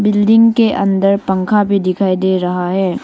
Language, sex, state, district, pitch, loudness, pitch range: Hindi, female, Arunachal Pradesh, Longding, 195 Hz, -13 LUFS, 185-210 Hz